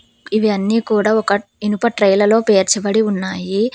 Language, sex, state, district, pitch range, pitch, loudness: Telugu, female, Telangana, Hyderabad, 200-220 Hz, 210 Hz, -16 LUFS